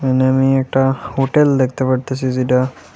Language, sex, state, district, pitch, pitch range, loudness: Bengali, male, Tripura, West Tripura, 130 Hz, 130-135 Hz, -16 LUFS